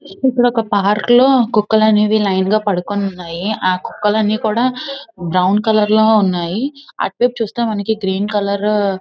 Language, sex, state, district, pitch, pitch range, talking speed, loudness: Telugu, female, Andhra Pradesh, Visakhapatnam, 210 Hz, 200-225 Hz, 165 wpm, -15 LUFS